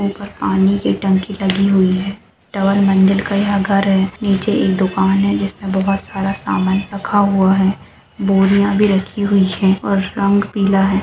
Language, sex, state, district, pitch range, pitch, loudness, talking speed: Hindi, female, Bihar, Muzaffarpur, 195-200 Hz, 195 Hz, -15 LUFS, 185 wpm